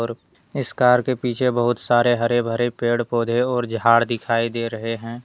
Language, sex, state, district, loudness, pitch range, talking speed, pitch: Hindi, male, Jharkhand, Deoghar, -20 LUFS, 115-120 Hz, 185 wpm, 120 Hz